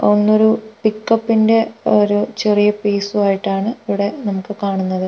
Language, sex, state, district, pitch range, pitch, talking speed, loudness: Malayalam, female, Kerala, Wayanad, 200-220 Hz, 210 Hz, 105 wpm, -16 LUFS